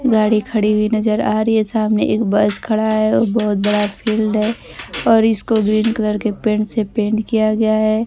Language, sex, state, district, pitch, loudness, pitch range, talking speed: Hindi, female, Bihar, Kaimur, 215 Hz, -16 LUFS, 215-220 Hz, 210 wpm